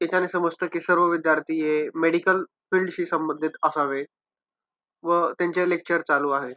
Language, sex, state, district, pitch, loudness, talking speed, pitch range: Marathi, male, Maharashtra, Dhule, 170 Hz, -24 LUFS, 145 wpm, 155-175 Hz